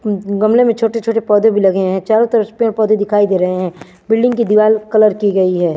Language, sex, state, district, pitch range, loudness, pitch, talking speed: Hindi, female, Chandigarh, Chandigarh, 190-225 Hz, -13 LUFS, 215 Hz, 250 wpm